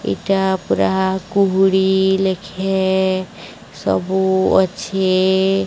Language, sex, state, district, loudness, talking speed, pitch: Odia, male, Odisha, Sambalpur, -17 LUFS, 65 wpm, 190 Hz